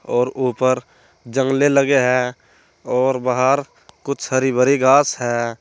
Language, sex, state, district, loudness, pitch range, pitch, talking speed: Hindi, male, Uttar Pradesh, Saharanpur, -18 LUFS, 125-135 Hz, 130 Hz, 130 wpm